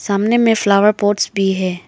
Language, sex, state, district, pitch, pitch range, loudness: Hindi, female, Arunachal Pradesh, Lower Dibang Valley, 205 Hz, 195-210 Hz, -15 LUFS